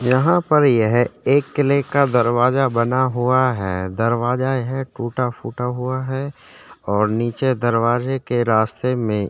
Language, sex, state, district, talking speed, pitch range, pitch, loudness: Hindi, male, Chhattisgarh, Sukma, 150 wpm, 115-130 Hz, 125 Hz, -19 LUFS